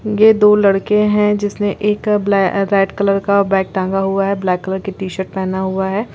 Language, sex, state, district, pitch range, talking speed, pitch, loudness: Hindi, female, Bihar, Gopalganj, 190-210 Hz, 205 wpm, 195 Hz, -15 LUFS